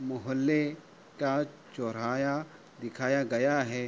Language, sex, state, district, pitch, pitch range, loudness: Hindi, male, Uttar Pradesh, Hamirpur, 135 Hz, 125-145 Hz, -31 LUFS